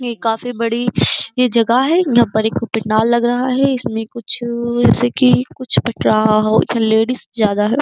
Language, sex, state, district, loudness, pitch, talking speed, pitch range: Hindi, female, Uttar Pradesh, Jyotiba Phule Nagar, -16 LUFS, 230 Hz, 190 wpm, 220-245 Hz